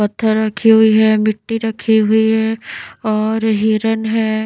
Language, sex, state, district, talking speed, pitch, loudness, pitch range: Hindi, female, Chhattisgarh, Raipur, 150 wpm, 220 Hz, -15 LUFS, 215-220 Hz